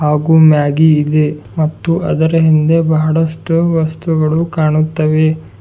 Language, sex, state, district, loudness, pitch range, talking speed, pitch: Kannada, male, Karnataka, Bidar, -13 LUFS, 155-165 Hz, 95 wpm, 155 Hz